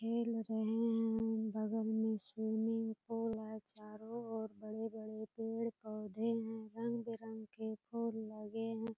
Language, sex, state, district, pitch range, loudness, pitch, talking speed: Hindi, female, Bihar, Purnia, 220-225 Hz, -41 LUFS, 225 Hz, 125 wpm